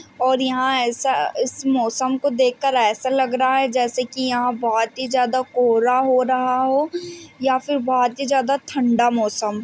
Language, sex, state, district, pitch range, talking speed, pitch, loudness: Hindi, female, Chhattisgarh, Raigarh, 245-265 Hz, 180 wpm, 255 Hz, -19 LUFS